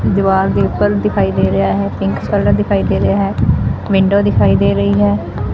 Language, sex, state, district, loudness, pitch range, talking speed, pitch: Punjabi, female, Punjab, Fazilka, -14 LUFS, 95-105 Hz, 195 wpm, 100 Hz